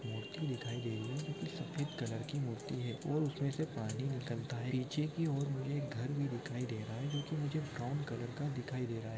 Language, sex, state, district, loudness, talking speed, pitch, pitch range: Hindi, male, Andhra Pradesh, Guntur, -40 LUFS, 230 wpm, 135 Hz, 120-145 Hz